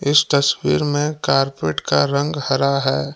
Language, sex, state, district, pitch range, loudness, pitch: Hindi, male, Jharkhand, Palamu, 135-145 Hz, -18 LUFS, 140 Hz